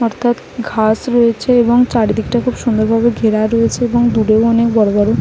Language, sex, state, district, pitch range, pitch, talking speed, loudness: Bengali, female, West Bengal, Malda, 220-240 Hz, 230 Hz, 185 wpm, -13 LUFS